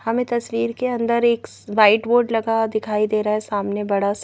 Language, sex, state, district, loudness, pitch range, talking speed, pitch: Hindi, female, Madhya Pradesh, Bhopal, -20 LUFS, 210-235 Hz, 200 wpm, 225 Hz